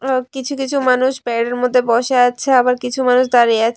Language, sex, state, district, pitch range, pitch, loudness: Bengali, female, Tripura, West Tripura, 245-260 Hz, 250 Hz, -15 LUFS